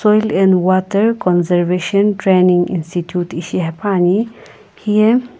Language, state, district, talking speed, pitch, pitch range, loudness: Sumi, Nagaland, Kohima, 100 wpm, 185 Hz, 175-210 Hz, -15 LUFS